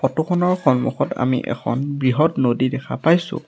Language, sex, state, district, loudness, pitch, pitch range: Assamese, male, Assam, Sonitpur, -20 LUFS, 140 Hz, 130-165 Hz